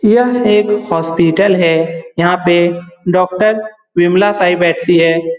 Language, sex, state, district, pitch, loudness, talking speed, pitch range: Hindi, male, Bihar, Saran, 175 Hz, -12 LUFS, 135 wpm, 170-210 Hz